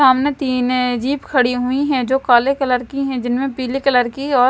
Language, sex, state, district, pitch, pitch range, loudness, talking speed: Hindi, male, Punjab, Fazilka, 260 Hz, 250-275 Hz, -17 LUFS, 225 wpm